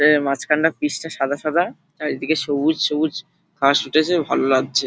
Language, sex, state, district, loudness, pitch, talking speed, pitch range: Bengali, male, West Bengal, Paschim Medinipur, -20 LUFS, 150 Hz, 170 wpm, 140-160 Hz